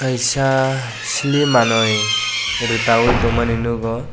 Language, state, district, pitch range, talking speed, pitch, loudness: Kokborok, Tripura, West Tripura, 115-130 Hz, 115 wpm, 120 Hz, -17 LUFS